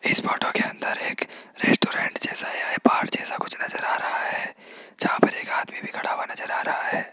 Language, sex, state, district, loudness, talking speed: Hindi, male, Rajasthan, Jaipur, -24 LUFS, 220 wpm